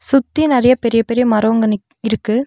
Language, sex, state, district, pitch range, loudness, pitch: Tamil, female, Tamil Nadu, Nilgiris, 220-255 Hz, -15 LUFS, 235 Hz